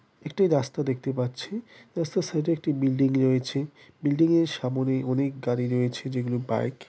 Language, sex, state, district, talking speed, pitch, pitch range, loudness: Bengali, male, West Bengal, Malda, 185 wpm, 135 Hz, 125-155 Hz, -26 LUFS